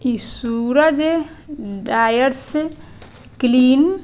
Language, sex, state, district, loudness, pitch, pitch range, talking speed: Bhojpuri, female, Bihar, Saran, -17 LUFS, 265 Hz, 240-310 Hz, 75 wpm